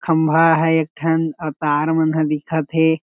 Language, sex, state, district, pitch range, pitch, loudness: Chhattisgarhi, male, Chhattisgarh, Jashpur, 155-160 Hz, 160 Hz, -18 LUFS